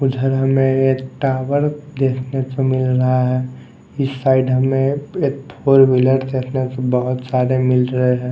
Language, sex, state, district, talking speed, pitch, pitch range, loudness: Hindi, male, Maharashtra, Mumbai Suburban, 160 wpm, 130 Hz, 130-135 Hz, -17 LUFS